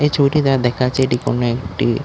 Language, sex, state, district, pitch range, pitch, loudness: Bengali, male, West Bengal, Dakshin Dinajpur, 125-140 Hz, 130 Hz, -17 LUFS